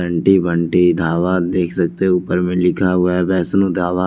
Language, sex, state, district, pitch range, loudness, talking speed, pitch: Hindi, male, Chandigarh, Chandigarh, 85-90 Hz, -16 LUFS, 190 wpm, 90 Hz